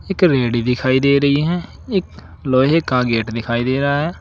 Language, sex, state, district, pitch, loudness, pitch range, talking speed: Hindi, male, Uttar Pradesh, Saharanpur, 135 Hz, -17 LUFS, 125-160 Hz, 200 wpm